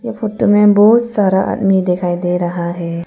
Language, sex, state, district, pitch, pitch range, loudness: Hindi, female, Arunachal Pradesh, Papum Pare, 190 Hz, 175-205 Hz, -14 LUFS